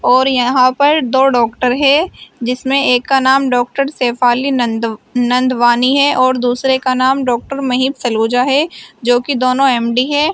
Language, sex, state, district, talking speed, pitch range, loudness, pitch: Hindi, female, Uttar Pradesh, Shamli, 160 wpm, 245-270 Hz, -13 LUFS, 255 Hz